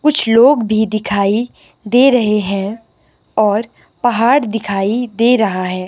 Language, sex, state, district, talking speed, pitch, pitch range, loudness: Hindi, female, Himachal Pradesh, Shimla, 130 wpm, 220 Hz, 205-245 Hz, -14 LUFS